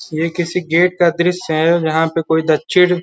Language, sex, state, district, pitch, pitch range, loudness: Hindi, male, Uttar Pradesh, Gorakhpur, 170 Hz, 160-180 Hz, -15 LUFS